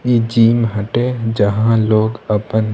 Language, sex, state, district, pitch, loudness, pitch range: Bhojpuri, male, Bihar, East Champaran, 110 Hz, -15 LUFS, 110-115 Hz